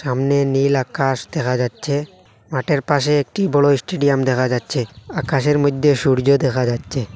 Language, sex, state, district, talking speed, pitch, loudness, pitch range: Bengali, male, Assam, Hailakandi, 140 wpm, 140 Hz, -18 LUFS, 130-145 Hz